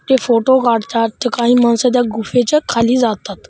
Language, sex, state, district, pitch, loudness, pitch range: Marathi, female, Maharashtra, Washim, 240 Hz, -14 LUFS, 230-250 Hz